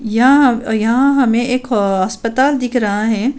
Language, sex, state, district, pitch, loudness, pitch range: Hindi, female, Uttar Pradesh, Budaun, 240 Hz, -14 LUFS, 220-260 Hz